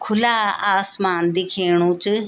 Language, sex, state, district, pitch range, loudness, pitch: Garhwali, female, Uttarakhand, Tehri Garhwal, 180-210 Hz, -18 LUFS, 195 Hz